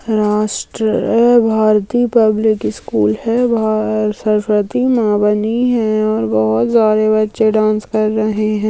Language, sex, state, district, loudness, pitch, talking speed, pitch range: Hindi, female, Uttarakhand, Tehri Garhwal, -14 LUFS, 215 Hz, 130 wpm, 210-225 Hz